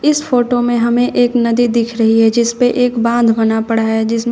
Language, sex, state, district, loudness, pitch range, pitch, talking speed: Hindi, female, Uttar Pradesh, Shamli, -13 LUFS, 225-245 Hz, 235 Hz, 235 wpm